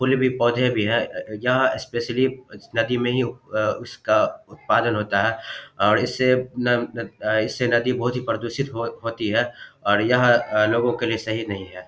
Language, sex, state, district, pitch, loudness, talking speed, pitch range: Hindi, male, Bihar, Samastipur, 120 Hz, -22 LUFS, 195 wpm, 110-125 Hz